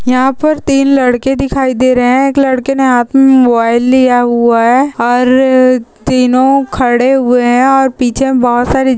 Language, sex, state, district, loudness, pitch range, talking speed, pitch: Hindi, female, Maharashtra, Nagpur, -10 LUFS, 245-270 Hz, 165 wpm, 255 Hz